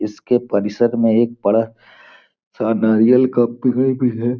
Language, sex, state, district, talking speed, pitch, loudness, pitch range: Hindi, male, Bihar, Gopalganj, 135 wpm, 120 Hz, -17 LUFS, 110-125 Hz